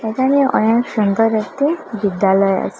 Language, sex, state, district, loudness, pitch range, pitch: Bengali, female, Assam, Hailakandi, -16 LUFS, 205-260 Hz, 220 Hz